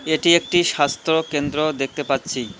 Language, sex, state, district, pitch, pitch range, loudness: Bengali, male, West Bengal, Cooch Behar, 155 Hz, 140-160 Hz, -20 LUFS